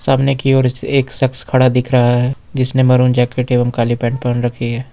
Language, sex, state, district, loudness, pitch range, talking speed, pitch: Hindi, male, Jharkhand, Ranchi, -15 LUFS, 120-130 Hz, 220 wpm, 125 Hz